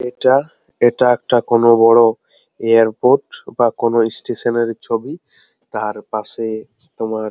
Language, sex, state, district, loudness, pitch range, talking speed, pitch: Bengali, male, West Bengal, Jalpaiguri, -16 LUFS, 110-120 Hz, 115 wpm, 115 Hz